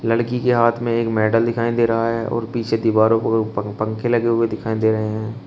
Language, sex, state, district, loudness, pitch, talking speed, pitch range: Hindi, male, Uttar Pradesh, Shamli, -19 LUFS, 115 Hz, 240 wpm, 110-115 Hz